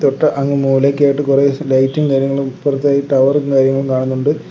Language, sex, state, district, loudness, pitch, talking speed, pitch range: Malayalam, male, Kerala, Kollam, -14 LUFS, 140 Hz, 135 wpm, 135-140 Hz